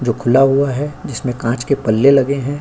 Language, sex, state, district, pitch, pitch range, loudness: Hindi, male, Uttar Pradesh, Jyotiba Phule Nagar, 135 Hz, 125-140 Hz, -15 LUFS